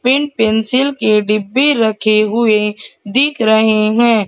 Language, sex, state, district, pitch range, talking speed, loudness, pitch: Hindi, female, Madhya Pradesh, Katni, 215-250 Hz, 125 wpm, -13 LUFS, 220 Hz